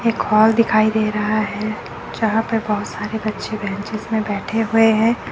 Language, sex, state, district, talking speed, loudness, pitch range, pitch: Hindi, female, Chandigarh, Chandigarh, 180 wpm, -19 LUFS, 215-225 Hz, 220 Hz